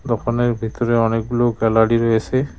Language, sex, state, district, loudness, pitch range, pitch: Bengali, male, West Bengal, Cooch Behar, -18 LUFS, 115-120 Hz, 115 Hz